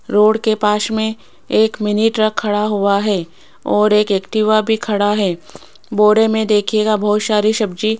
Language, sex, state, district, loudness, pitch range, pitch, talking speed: Hindi, female, Rajasthan, Jaipur, -15 LUFS, 210-220 Hz, 210 Hz, 170 wpm